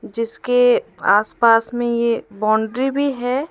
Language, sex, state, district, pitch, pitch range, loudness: Hindi, female, Madhya Pradesh, Umaria, 240 Hz, 225-275 Hz, -18 LUFS